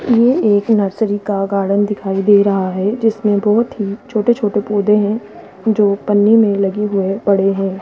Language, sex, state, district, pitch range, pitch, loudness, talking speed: Hindi, female, Rajasthan, Jaipur, 200-215 Hz, 205 Hz, -15 LUFS, 175 wpm